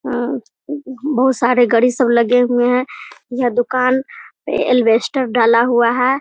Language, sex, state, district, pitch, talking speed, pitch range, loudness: Hindi, female, Bihar, Muzaffarpur, 245 Hz, 135 wpm, 240-260 Hz, -15 LUFS